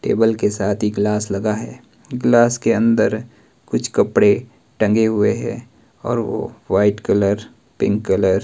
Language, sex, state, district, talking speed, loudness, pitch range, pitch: Hindi, male, Himachal Pradesh, Shimla, 155 wpm, -18 LUFS, 105-115 Hz, 110 Hz